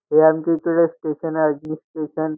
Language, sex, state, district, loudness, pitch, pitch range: Marathi, male, Maharashtra, Nagpur, -20 LUFS, 155 Hz, 155-160 Hz